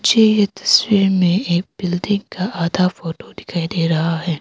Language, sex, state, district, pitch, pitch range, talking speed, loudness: Hindi, female, Arunachal Pradesh, Papum Pare, 180 Hz, 170-200 Hz, 175 wpm, -17 LUFS